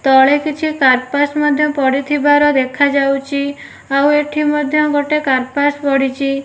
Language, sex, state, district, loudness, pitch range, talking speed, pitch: Odia, female, Odisha, Nuapada, -14 LUFS, 275-295 Hz, 110 wpm, 285 Hz